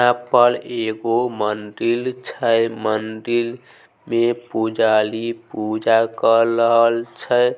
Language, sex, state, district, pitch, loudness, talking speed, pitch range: Maithili, male, Bihar, Samastipur, 115 Hz, -19 LUFS, 95 wpm, 110-120 Hz